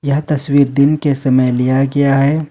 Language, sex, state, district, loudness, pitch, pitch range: Hindi, male, Jharkhand, Ranchi, -13 LUFS, 140 Hz, 135-145 Hz